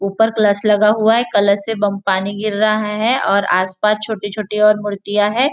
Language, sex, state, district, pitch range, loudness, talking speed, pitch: Hindi, female, Maharashtra, Nagpur, 200-215 Hz, -16 LUFS, 205 wpm, 210 Hz